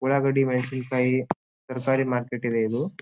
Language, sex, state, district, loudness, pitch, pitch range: Kannada, male, Karnataka, Bijapur, -25 LUFS, 130 Hz, 125-135 Hz